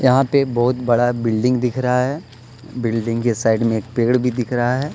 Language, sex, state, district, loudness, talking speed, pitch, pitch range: Hindi, male, Jharkhand, Deoghar, -18 LUFS, 220 wpm, 125 Hz, 115-125 Hz